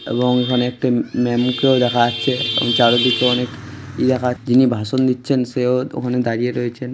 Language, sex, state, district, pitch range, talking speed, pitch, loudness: Bengali, male, West Bengal, Malda, 120-125 Hz, 155 wpm, 125 Hz, -17 LUFS